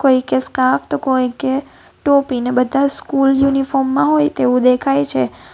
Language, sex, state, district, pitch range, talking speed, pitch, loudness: Gujarati, female, Gujarat, Valsad, 250-275 Hz, 150 wpm, 265 Hz, -16 LUFS